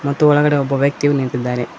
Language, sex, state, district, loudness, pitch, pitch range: Kannada, male, Karnataka, Koppal, -16 LUFS, 140 Hz, 130-145 Hz